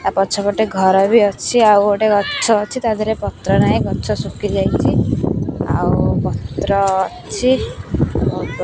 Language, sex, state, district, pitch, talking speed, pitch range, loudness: Odia, female, Odisha, Khordha, 205 Hz, 120 wpm, 195-220 Hz, -16 LUFS